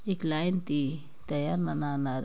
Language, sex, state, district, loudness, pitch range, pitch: Sadri, female, Chhattisgarh, Jashpur, -31 LUFS, 145-175 Hz, 150 Hz